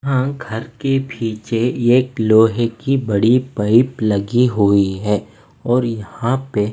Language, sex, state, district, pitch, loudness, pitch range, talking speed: Hindi, male, Odisha, Nuapada, 115 Hz, -17 LUFS, 110-130 Hz, 135 wpm